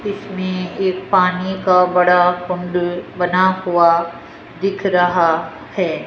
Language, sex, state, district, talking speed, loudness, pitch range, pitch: Hindi, female, Rajasthan, Jaipur, 110 wpm, -17 LUFS, 175-185 Hz, 180 Hz